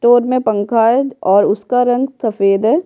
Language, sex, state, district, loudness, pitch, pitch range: Hindi, female, Bihar, Kishanganj, -14 LUFS, 235 Hz, 210-250 Hz